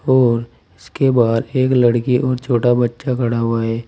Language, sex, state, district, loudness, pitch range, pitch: Hindi, male, Uttar Pradesh, Saharanpur, -16 LUFS, 115-130 Hz, 120 Hz